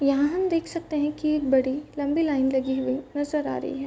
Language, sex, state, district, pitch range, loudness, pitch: Hindi, female, Uttar Pradesh, Varanasi, 270-305 Hz, -25 LUFS, 290 Hz